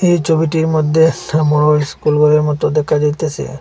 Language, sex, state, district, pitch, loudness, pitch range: Bengali, male, Assam, Hailakandi, 150 Hz, -14 LUFS, 150-160 Hz